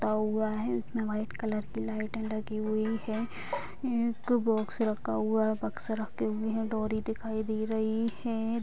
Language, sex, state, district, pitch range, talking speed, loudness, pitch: Hindi, female, Bihar, Sitamarhi, 215-225 Hz, 180 wpm, -32 LUFS, 220 Hz